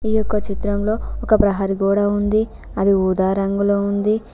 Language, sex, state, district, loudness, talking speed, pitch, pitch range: Telugu, female, Telangana, Mahabubabad, -18 LUFS, 150 wpm, 205 Hz, 195-215 Hz